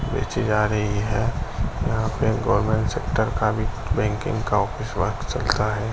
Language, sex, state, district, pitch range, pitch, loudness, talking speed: Hindi, male, Uttar Pradesh, Gorakhpur, 105-110 Hz, 105 Hz, -23 LUFS, 160 wpm